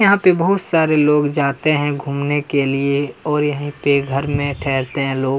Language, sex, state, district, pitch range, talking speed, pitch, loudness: Hindi, male, Chhattisgarh, Kabirdham, 140-150 Hz, 210 wpm, 145 Hz, -18 LUFS